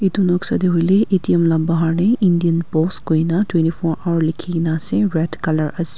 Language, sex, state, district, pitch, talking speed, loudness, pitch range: Nagamese, female, Nagaland, Kohima, 170 Hz, 210 wpm, -17 LUFS, 160-185 Hz